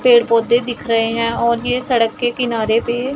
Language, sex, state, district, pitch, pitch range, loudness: Hindi, female, Punjab, Pathankot, 235 Hz, 230-245 Hz, -16 LUFS